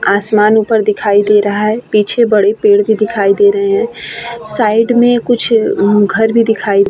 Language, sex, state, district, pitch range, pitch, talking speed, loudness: Hindi, female, Bihar, Vaishali, 205-235 Hz, 215 Hz, 185 wpm, -11 LUFS